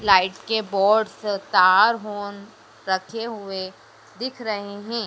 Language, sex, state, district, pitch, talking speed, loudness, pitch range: Hindi, female, Madhya Pradesh, Dhar, 205 Hz, 120 wpm, -22 LUFS, 195-220 Hz